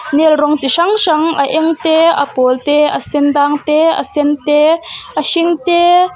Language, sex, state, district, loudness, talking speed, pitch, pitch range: Mizo, female, Mizoram, Aizawl, -12 LUFS, 205 wpm, 305 Hz, 290-335 Hz